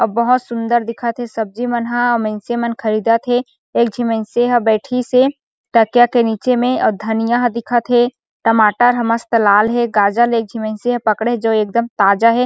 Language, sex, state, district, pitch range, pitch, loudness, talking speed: Chhattisgarhi, female, Chhattisgarh, Sarguja, 225-240 Hz, 235 Hz, -16 LUFS, 205 wpm